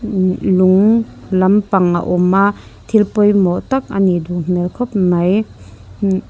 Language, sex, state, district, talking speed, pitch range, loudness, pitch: Mizo, female, Mizoram, Aizawl, 125 wpm, 180-205 Hz, -15 LUFS, 190 Hz